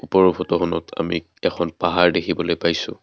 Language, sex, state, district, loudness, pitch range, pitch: Assamese, male, Assam, Kamrup Metropolitan, -20 LUFS, 85-90 Hz, 85 Hz